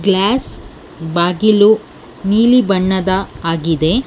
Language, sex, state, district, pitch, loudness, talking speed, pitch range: Kannada, female, Karnataka, Bangalore, 195 Hz, -14 LUFS, 75 wpm, 175-215 Hz